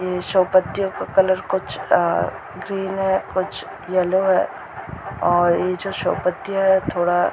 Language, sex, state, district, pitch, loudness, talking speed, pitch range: Hindi, female, Bihar, Muzaffarpur, 185 Hz, -20 LUFS, 180 wpm, 180-190 Hz